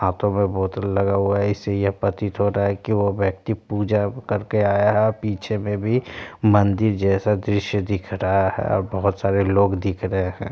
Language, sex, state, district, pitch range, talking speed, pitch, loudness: Hindi, male, Bihar, Kishanganj, 95-105 Hz, 210 wpm, 100 Hz, -21 LUFS